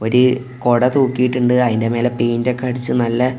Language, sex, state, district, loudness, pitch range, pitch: Malayalam, male, Kerala, Kozhikode, -17 LUFS, 120-125 Hz, 125 Hz